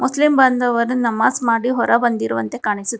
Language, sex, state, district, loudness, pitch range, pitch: Kannada, female, Karnataka, Bangalore, -17 LUFS, 230-250 Hz, 235 Hz